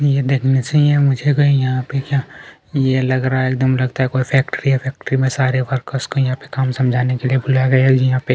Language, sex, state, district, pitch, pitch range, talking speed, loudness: Hindi, male, Chhattisgarh, Kabirdham, 130 Hz, 130-135 Hz, 260 wpm, -17 LUFS